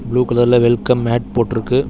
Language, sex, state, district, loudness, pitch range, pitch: Tamil, male, Tamil Nadu, Chennai, -15 LUFS, 120-125 Hz, 120 Hz